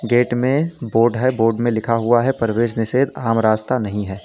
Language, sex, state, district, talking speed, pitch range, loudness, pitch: Hindi, male, Uttar Pradesh, Lalitpur, 210 wpm, 115-125 Hz, -18 LUFS, 115 Hz